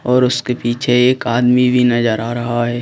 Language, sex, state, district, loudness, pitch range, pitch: Hindi, male, Madhya Pradesh, Bhopal, -15 LUFS, 120-125 Hz, 120 Hz